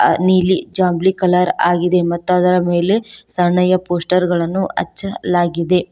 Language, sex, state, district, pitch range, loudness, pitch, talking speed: Kannada, female, Karnataka, Koppal, 175-185 Hz, -16 LUFS, 180 Hz, 120 wpm